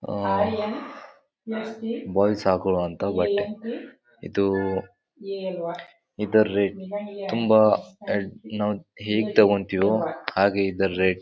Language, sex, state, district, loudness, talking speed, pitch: Kannada, male, Karnataka, Bijapur, -24 LUFS, 80 wpm, 110 Hz